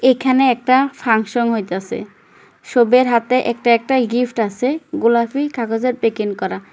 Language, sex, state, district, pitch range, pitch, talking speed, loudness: Bengali, female, West Bengal, Kolkata, 225-255 Hz, 240 Hz, 135 wpm, -17 LUFS